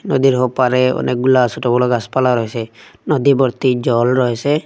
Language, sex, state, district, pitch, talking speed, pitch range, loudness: Bengali, male, Assam, Hailakandi, 125 Hz, 140 wpm, 120-135 Hz, -15 LUFS